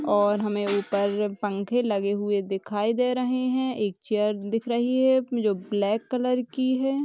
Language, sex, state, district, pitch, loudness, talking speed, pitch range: Hindi, female, Uttar Pradesh, Jyotiba Phule Nagar, 215 Hz, -25 LUFS, 170 wpm, 205-250 Hz